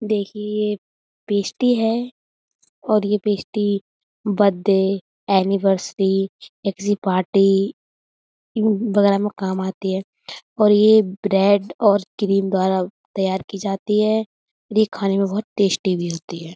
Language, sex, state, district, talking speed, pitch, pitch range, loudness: Hindi, female, Uttar Pradesh, Budaun, 135 wpm, 200 Hz, 190-210 Hz, -20 LUFS